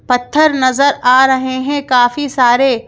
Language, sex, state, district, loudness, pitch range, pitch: Hindi, female, Madhya Pradesh, Bhopal, -12 LUFS, 250-280 Hz, 260 Hz